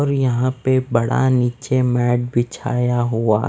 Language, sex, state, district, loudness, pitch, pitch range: Hindi, male, Punjab, Fazilka, -18 LUFS, 125 Hz, 120-130 Hz